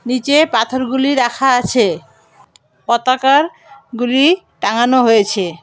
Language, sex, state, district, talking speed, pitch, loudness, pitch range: Bengali, female, West Bengal, Alipurduar, 75 wpm, 255 Hz, -14 LUFS, 235-275 Hz